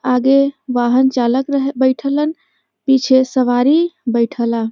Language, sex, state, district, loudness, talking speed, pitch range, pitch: Bhojpuri, female, Uttar Pradesh, Varanasi, -15 LUFS, 100 wpm, 245-275 Hz, 260 Hz